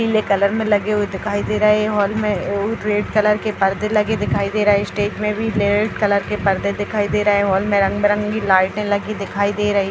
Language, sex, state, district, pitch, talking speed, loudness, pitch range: Hindi, female, Bihar, Jahanabad, 205 Hz, 235 wpm, -18 LUFS, 200-210 Hz